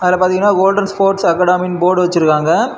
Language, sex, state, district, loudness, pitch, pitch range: Tamil, male, Tamil Nadu, Kanyakumari, -13 LUFS, 180 Hz, 175-195 Hz